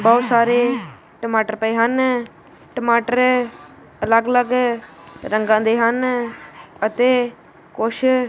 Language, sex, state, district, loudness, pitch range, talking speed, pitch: Punjabi, male, Punjab, Kapurthala, -18 LUFS, 225-250 Hz, 95 wpm, 235 Hz